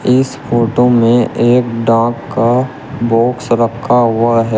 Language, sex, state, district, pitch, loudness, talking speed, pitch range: Hindi, male, Uttar Pradesh, Shamli, 120 Hz, -13 LUFS, 130 wpm, 115-125 Hz